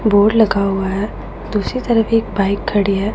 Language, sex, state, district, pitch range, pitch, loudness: Hindi, female, Punjab, Pathankot, 195-220 Hz, 205 Hz, -16 LUFS